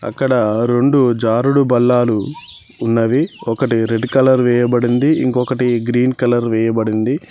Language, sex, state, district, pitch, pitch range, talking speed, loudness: Telugu, male, Telangana, Mahabubabad, 120 Hz, 115-130 Hz, 105 wpm, -15 LUFS